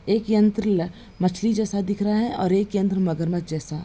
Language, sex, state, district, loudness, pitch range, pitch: Hindi, female, Bihar, Gopalganj, -23 LUFS, 175-215 Hz, 200 Hz